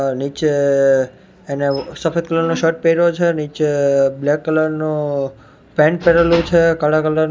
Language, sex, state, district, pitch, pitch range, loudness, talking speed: Gujarati, male, Gujarat, Gandhinagar, 155 Hz, 140-165 Hz, -16 LUFS, 155 wpm